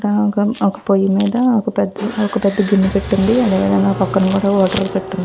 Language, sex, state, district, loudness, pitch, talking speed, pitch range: Telugu, female, Andhra Pradesh, Visakhapatnam, -16 LUFS, 200 Hz, 170 wpm, 195-210 Hz